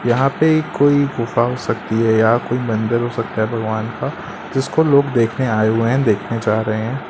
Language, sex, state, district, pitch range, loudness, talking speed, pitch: Hindi, male, Madhya Pradesh, Katni, 110-135 Hz, -17 LUFS, 200 wpm, 115 Hz